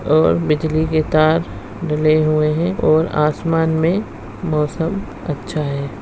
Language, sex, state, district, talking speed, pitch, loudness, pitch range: Hindi, female, Bihar, Madhepura, 130 wpm, 155 Hz, -18 LUFS, 150-165 Hz